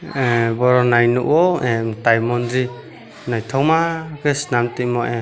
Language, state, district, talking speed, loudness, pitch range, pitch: Kokborok, Tripura, West Tripura, 125 wpm, -18 LUFS, 120-140 Hz, 125 Hz